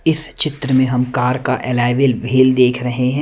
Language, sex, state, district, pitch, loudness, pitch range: Hindi, male, Punjab, Kapurthala, 130 Hz, -16 LUFS, 125-135 Hz